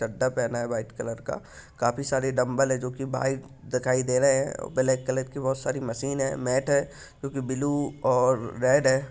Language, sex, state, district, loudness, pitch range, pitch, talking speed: Hindi, male, Bihar, Lakhisarai, -26 LUFS, 130-135 Hz, 130 Hz, 205 wpm